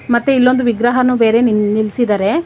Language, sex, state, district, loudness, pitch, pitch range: Kannada, female, Karnataka, Bangalore, -13 LUFS, 240 Hz, 220-250 Hz